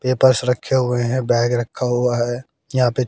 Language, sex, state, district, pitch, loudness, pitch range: Hindi, male, Haryana, Jhajjar, 125 Hz, -19 LUFS, 120-130 Hz